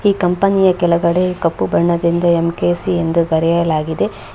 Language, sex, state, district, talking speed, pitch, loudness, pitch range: Kannada, female, Karnataka, Bangalore, 110 wpm, 170 Hz, -15 LUFS, 170-180 Hz